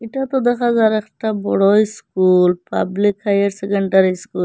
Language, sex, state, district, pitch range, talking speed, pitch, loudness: Bengali, female, Assam, Hailakandi, 190-220 Hz, 160 wpm, 205 Hz, -17 LUFS